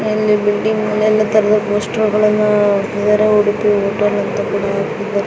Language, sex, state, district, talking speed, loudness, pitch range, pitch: Kannada, female, Karnataka, Raichur, 125 wpm, -15 LUFS, 205-215 Hz, 210 Hz